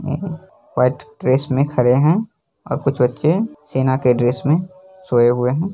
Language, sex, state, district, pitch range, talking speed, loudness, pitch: Hindi, male, Bihar, Lakhisarai, 125-175 Hz, 175 wpm, -18 LUFS, 145 Hz